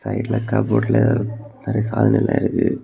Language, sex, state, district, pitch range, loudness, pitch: Tamil, male, Tamil Nadu, Kanyakumari, 115-130 Hz, -19 LUFS, 120 Hz